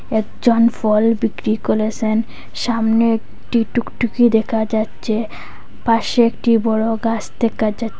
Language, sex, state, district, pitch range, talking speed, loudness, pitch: Bengali, female, Assam, Hailakandi, 220-230 Hz, 115 wpm, -18 LUFS, 225 Hz